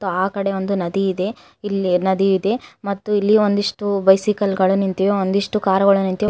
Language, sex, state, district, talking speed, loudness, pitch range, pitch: Kannada, female, Karnataka, Koppal, 170 wpm, -18 LUFS, 190-205 Hz, 195 Hz